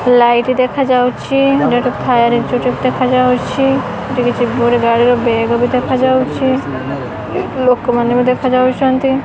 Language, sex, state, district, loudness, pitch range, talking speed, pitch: Odia, female, Odisha, Khordha, -13 LUFS, 245-260 Hz, 105 wpm, 250 Hz